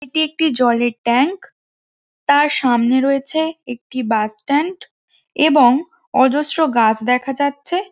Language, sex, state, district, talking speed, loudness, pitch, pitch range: Bengali, female, West Bengal, Jhargram, 130 wpm, -17 LUFS, 275 Hz, 245-315 Hz